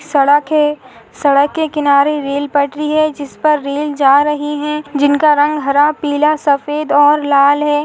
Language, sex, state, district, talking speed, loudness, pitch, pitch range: Hindi, female, Goa, North and South Goa, 170 wpm, -13 LUFS, 295 Hz, 285-300 Hz